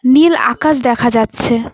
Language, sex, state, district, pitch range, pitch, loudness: Bengali, female, West Bengal, Cooch Behar, 235-305 Hz, 255 Hz, -12 LUFS